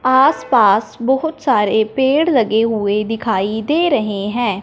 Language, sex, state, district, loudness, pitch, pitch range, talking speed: Hindi, female, Punjab, Fazilka, -16 LUFS, 230 Hz, 215-270 Hz, 130 wpm